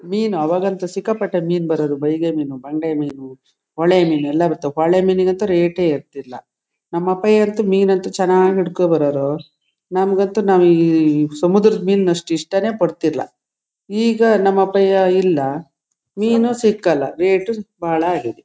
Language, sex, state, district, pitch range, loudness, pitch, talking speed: Kannada, female, Karnataka, Shimoga, 155-195 Hz, -17 LUFS, 175 Hz, 125 wpm